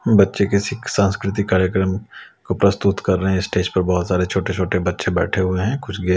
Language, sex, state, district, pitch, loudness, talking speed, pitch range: Hindi, male, Chhattisgarh, Raipur, 95 Hz, -19 LUFS, 205 wpm, 90-100 Hz